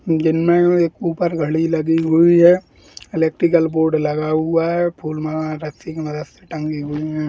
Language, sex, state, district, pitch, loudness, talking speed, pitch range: Hindi, male, Bihar, Gaya, 160 Hz, -17 LUFS, 190 wpm, 155-170 Hz